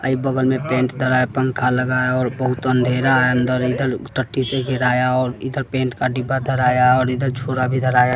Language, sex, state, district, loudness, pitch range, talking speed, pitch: Hindi, male, Bihar, West Champaran, -19 LUFS, 125-130 Hz, 215 wpm, 130 Hz